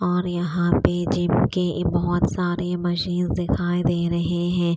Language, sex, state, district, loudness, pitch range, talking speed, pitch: Hindi, female, Chandigarh, Chandigarh, -22 LUFS, 175-180 Hz, 165 wpm, 175 Hz